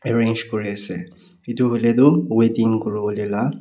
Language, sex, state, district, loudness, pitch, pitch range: Nagamese, male, Nagaland, Kohima, -19 LUFS, 115 Hz, 105-120 Hz